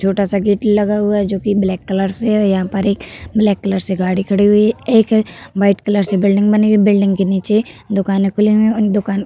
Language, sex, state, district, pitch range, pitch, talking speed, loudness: Hindi, female, Uttar Pradesh, Hamirpur, 195-210 Hz, 200 Hz, 255 wpm, -15 LUFS